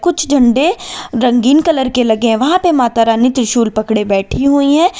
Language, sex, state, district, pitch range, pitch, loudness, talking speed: Hindi, female, Uttar Pradesh, Lalitpur, 230-315 Hz, 255 Hz, -12 LUFS, 190 wpm